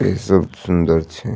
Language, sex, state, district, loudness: Maithili, male, Bihar, Madhepura, -17 LUFS